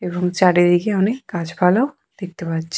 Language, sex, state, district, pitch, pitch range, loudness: Bengali, female, West Bengal, Purulia, 180 Hz, 175-200 Hz, -18 LUFS